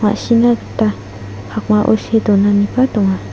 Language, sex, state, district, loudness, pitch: Garo, female, Meghalaya, South Garo Hills, -14 LUFS, 200 Hz